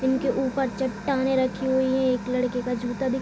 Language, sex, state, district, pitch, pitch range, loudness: Hindi, female, Jharkhand, Sahebganj, 260 Hz, 250-260 Hz, -25 LUFS